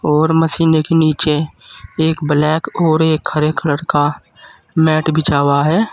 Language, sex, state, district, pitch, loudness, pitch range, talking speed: Hindi, male, Uttar Pradesh, Saharanpur, 155 Hz, -15 LUFS, 150-160 Hz, 150 wpm